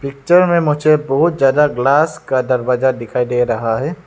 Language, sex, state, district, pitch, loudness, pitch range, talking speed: Hindi, male, Arunachal Pradesh, Lower Dibang Valley, 135 Hz, -15 LUFS, 125-155 Hz, 175 wpm